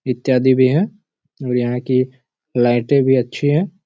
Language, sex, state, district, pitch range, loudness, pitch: Hindi, male, Chhattisgarh, Raigarh, 125-150 Hz, -17 LUFS, 130 Hz